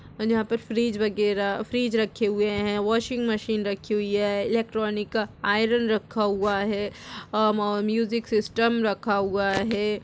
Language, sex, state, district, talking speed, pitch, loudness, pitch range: Hindi, female, Uttar Pradesh, Jalaun, 155 wpm, 210 Hz, -25 LUFS, 205-225 Hz